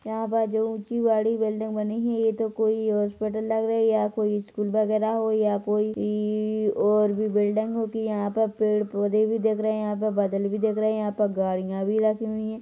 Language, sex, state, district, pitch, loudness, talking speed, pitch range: Hindi, female, Chhattisgarh, Rajnandgaon, 215 Hz, -25 LUFS, 220 wpm, 210-220 Hz